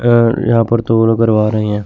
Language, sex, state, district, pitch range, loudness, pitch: Hindi, male, Chandigarh, Chandigarh, 110-115 Hz, -13 LUFS, 115 Hz